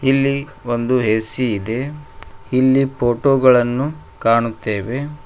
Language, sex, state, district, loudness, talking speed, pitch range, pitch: Kannada, male, Karnataka, Koppal, -18 LUFS, 90 wpm, 115-135 Hz, 125 Hz